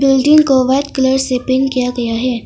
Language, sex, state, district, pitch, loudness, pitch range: Hindi, female, Arunachal Pradesh, Longding, 260 Hz, -13 LUFS, 250-270 Hz